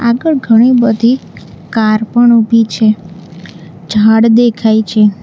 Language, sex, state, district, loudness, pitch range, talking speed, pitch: Gujarati, female, Gujarat, Valsad, -10 LUFS, 210-235 Hz, 115 wpm, 220 Hz